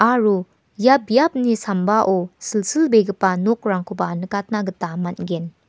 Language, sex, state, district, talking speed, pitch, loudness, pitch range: Garo, female, Meghalaya, West Garo Hills, 95 wpm, 205 Hz, -19 LUFS, 185-225 Hz